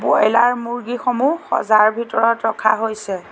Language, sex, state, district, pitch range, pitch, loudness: Assamese, female, Assam, Sonitpur, 215-245 Hz, 230 Hz, -17 LUFS